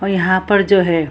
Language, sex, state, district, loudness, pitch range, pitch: Hindi, female, Bihar, Purnia, -14 LUFS, 180-195 Hz, 190 Hz